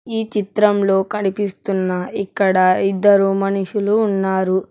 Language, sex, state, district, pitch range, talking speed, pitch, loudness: Telugu, male, Telangana, Hyderabad, 190-205 Hz, 90 wpm, 195 Hz, -17 LUFS